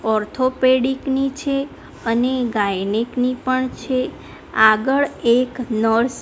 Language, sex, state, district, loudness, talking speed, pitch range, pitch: Gujarati, female, Gujarat, Gandhinagar, -19 LUFS, 115 wpm, 225-260 Hz, 255 Hz